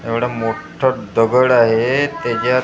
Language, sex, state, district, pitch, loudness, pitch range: Marathi, male, Maharashtra, Gondia, 125 Hz, -16 LUFS, 115-130 Hz